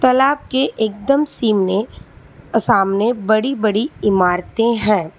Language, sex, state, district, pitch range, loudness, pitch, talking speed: Hindi, female, Telangana, Hyderabad, 200-255 Hz, -17 LUFS, 220 Hz, 105 wpm